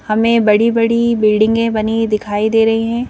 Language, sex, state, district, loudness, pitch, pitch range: Hindi, female, Madhya Pradesh, Bhopal, -14 LUFS, 225 Hz, 215-230 Hz